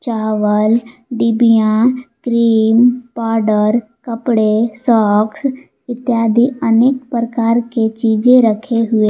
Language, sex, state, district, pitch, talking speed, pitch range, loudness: Hindi, female, Jharkhand, Palamu, 230 Hz, 85 wpm, 220-240 Hz, -14 LUFS